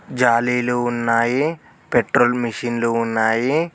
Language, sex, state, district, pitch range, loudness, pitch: Telugu, male, Telangana, Mahabubabad, 115-125 Hz, -19 LUFS, 120 Hz